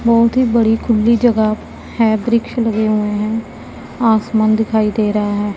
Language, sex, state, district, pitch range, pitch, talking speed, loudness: Hindi, female, Punjab, Pathankot, 215-230 Hz, 220 Hz, 160 wpm, -15 LUFS